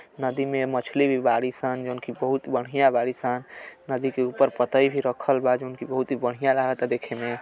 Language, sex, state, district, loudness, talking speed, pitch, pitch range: Bhojpuri, male, Uttar Pradesh, Gorakhpur, -25 LUFS, 195 wpm, 130 Hz, 125-135 Hz